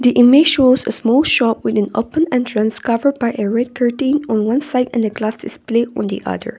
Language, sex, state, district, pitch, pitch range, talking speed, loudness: English, female, Nagaland, Kohima, 245 Hz, 225-265 Hz, 220 wpm, -15 LUFS